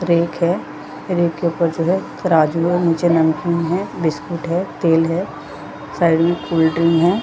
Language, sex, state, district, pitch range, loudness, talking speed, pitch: Hindi, female, Jharkhand, Jamtara, 165-175 Hz, -18 LUFS, 175 wpm, 170 Hz